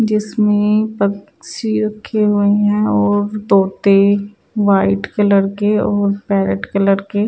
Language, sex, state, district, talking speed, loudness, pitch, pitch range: Hindi, male, Odisha, Nuapada, 115 wpm, -15 LUFS, 205 Hz, 200-210 Hz